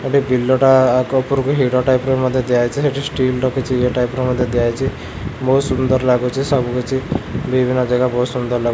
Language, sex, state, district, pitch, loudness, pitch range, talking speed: Odia, male, Odisha, Khordha, 130 Hz, -17 LUFS, 125-130 Hz, 190 wpm